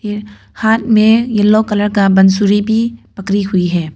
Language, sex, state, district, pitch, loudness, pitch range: Hindi, female, Arunachal Pradesh, Papum Pare, 210 Hz, -12 LUFS, 195-220 Hz